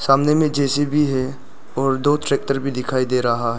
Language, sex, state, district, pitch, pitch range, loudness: Hindi, male, Arunachal Pradesh, Lower Dibang Valley, 135 Hz, 130-145 Hz, -19 LUFS